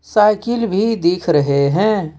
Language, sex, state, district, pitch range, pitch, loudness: Hindi, male, Jharkhand, Ranchi, 160-215 Hz, 200 Hz, -16 LUFS